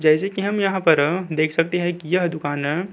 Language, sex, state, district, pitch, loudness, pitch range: Hindi, male, Uttarakhand, Tehri Garhwal, 170 Hz, -21 LUFS, 155-185 Hz